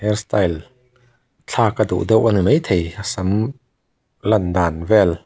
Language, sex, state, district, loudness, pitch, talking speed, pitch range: Mizo, male, Mizoram, Aizawl, -18 LUFS, 105 Hz, 160 wpm, 90-115 Hz